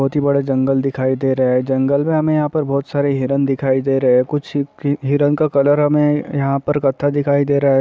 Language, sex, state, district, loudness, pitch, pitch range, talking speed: Hindi, male, Bihar, Vaishali, -17 LUFS, 140 Hz, 135-145 Hz, 255 wpm